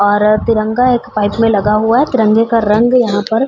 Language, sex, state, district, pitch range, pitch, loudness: Hindi, female, Uttar Pradesh, Varanasi, 210-235 Hz, 225 Hz, -12 LUFS